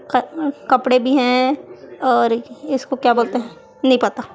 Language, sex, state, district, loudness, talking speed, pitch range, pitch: Hindi, female, Chhattisgarh, Raipur, -18 LUFS, 150 wpm, 245-270 Hz, 255 Hz